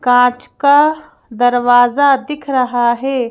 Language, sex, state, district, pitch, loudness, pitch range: Hindi, female, Madhya Pradesh, Bhopal, 250 Hz, -13 LUFS, 245-280 Hz